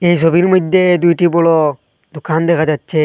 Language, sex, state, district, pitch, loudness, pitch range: Bengali, male, Assam, Hailakandi, 165 Hz, -13 LUFS, 155-175 Hz